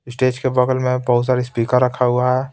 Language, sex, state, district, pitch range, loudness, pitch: Hindi, male, Bihar, Patna, 125-130 Hz, -18 LUFS, 125 Hz